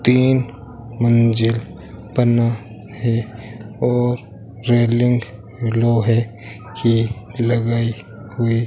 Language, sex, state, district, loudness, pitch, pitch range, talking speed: Hindi, male, Rajasthan, Bikaner, -18 LUFS, 115 Hz, 110-120 Hz, 75 wpm